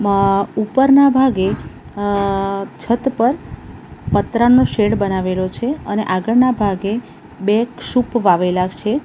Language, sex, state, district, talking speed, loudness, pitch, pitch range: Gujarati, female, Gujarat, Valsad, 115 wpm, -16 LUFS, 210 Hz, 195-245 Hz